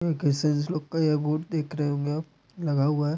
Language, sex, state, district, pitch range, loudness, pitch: Hindi, male, Bihar, Muzaffarpur, 145-160 Hz, -27 LUFS, 150 Hz